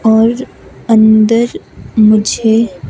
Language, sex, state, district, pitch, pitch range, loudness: Hindi, female, Himachal Pradesh, Shimla, 220 Hz, 215-230 Hz, -10 LUFS